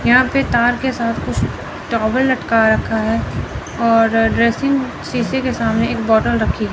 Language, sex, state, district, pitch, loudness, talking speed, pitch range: Hindi, female, Chandigarh, Chandigarh, 230 Hz, -16 LUFS, 160 wpm, 225-255 Hz